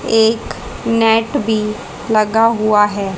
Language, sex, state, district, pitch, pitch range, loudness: Hindi, female, Haryana, Jhajjar, 220 Hz, 210-225 Hz, -15 LUFS